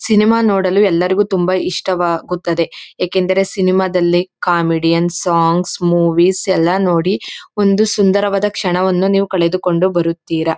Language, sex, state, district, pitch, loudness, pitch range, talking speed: Kannada, female, Karnataka, Mysore, 185 Hz, -15 LUFS, 170-195 Hz, 100 wpm